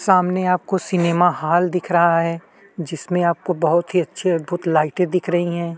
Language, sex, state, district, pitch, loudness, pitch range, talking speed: Hindi, male, Chhattisgarh, Kabirdham, 175 Hz, -19 LUFS, 170-180 Hz, 175 wpm